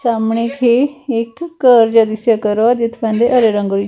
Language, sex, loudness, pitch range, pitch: Punjabi, female, -14 LUFS, 225-245 Hz, 230 Hz